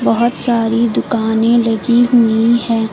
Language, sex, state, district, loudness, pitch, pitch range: Hindi, female, Uttar Pradesh, Lucknow, -13 LUFS, 230 Hz, 225-235 Hz